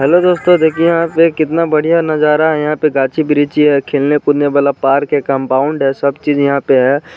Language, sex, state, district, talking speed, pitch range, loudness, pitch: Hindi, male, Bihar, Sitamarhi, 200 wpm, 140-160 Hz, -12 LUFS, 150 Hz